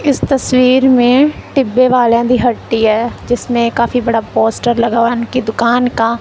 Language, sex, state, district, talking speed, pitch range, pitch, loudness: Hindi, female, Punjab, Kapurthala, 165 wpm, 235-255 Hz, 240 Hz, -12 LUFS